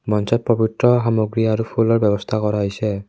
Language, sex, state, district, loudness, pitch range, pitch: Assamese, male, Assam, Kamrup Metropolitan, -18 LUFS, 105-115 Hz, 110 Hz